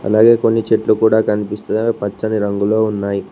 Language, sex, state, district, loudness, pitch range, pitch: Telugu, male, Telangana, Mahabubabad, -16 LUFS, 100-110 Hz, 110 Hz